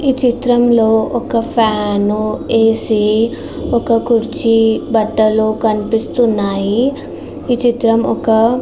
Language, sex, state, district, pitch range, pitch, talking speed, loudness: Telugu, female, Andhra Pradesh, Srikakulam, 220-240 Hz, 225 Hz, 90 wpm, -14 LUFS